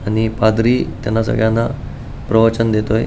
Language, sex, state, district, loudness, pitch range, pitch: Marathi, male, Goa, North and South Goa, -16 LUFS, 110-115 Hz, 110 Hz